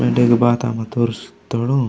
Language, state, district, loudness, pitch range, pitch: Gondi, Chhattisgarh, Sukma, -18 LUFS, 115-120 Hz, 120 Hz